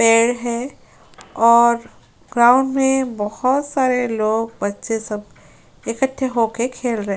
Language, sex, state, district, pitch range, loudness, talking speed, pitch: Hindi, female, Uttar Pradesh, Jyotiba Phule Nagar, 225-255 Hz, -18 LUFS, 125 wpm, 235 Hz